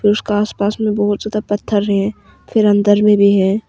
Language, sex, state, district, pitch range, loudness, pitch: Hindi, female, Arunachal Pradesh, Longding, 205-210 Hz, -15 LUFS, 205 Hz